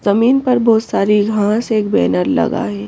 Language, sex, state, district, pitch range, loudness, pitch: Hindi, female, Madhya Pradesh, Bhopal, 200-230 Hz, -14 LUFS, 210 Hz